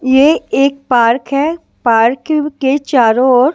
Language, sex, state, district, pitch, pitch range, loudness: Hindi, male, Delhi, New Delhi, 265 Hz, 245-285 Hz, -12 LUFS